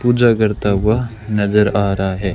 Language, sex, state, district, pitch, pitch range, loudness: Hindi, male, Rajasthan, Bikaner, 105 Hz, 100-110 Hz, -16 LUFS